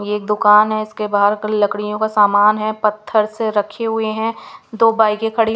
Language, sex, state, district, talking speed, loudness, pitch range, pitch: Hindi, female, Punjab, Pathankot, 195 wpm, -16 LUFS, 210-220 Hz, 215 Hz